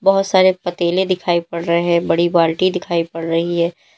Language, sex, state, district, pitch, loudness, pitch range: Hindi, female, Uttar Pradesh, Lalitpur, 170 Hz, -17 LUFS, 170-185 Hz